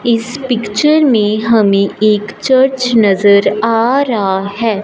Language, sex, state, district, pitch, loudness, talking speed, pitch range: Hindi, female, Punjab, Fazilka, 225 Hz, -12 LUFS, 125 wpm, 205-250 Hz